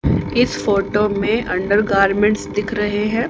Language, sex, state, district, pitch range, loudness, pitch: Hindi, female, Haryana, Charkhi Dadri, 200-215 Hz, -18 LUFS, 210 Hz